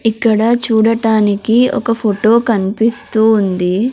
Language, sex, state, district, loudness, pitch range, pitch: Telugu, female, Andhra Pradesh, Sri Satya Sai, -13 LUFS, 215-230 Hz, 225 Hz